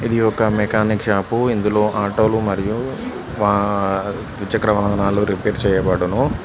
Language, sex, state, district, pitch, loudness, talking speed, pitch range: Telugu, male, Telangana, Mahabubabad, 105 Hz, -19 LUFS, 120 wpm, 100-110 Hz